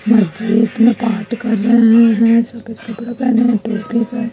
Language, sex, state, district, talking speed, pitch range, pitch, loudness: Hindi, female, Chhattisgarh, Raipur, 150 wpm, 225-235 Hz, 230 Hz, -14 LUFS